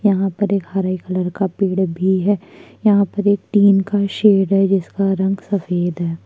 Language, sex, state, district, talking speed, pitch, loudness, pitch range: Hindi, female, Chhattisgarh, Kabirdham, 200 wpm, 195 Hz, -17 LUFS, 185-200 Hz